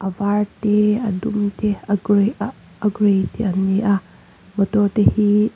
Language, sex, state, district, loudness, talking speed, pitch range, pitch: Mizo, female, Mizoram, Aizawl, -19 LUFS, 195 wpm, 200-210 Hz, 205 Hz